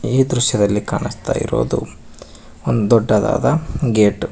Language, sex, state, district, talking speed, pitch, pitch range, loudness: Kannada, male, Karnataka, Koppal, 110 wpm, 115 Hz, 105-130 Hz, -17 LUFS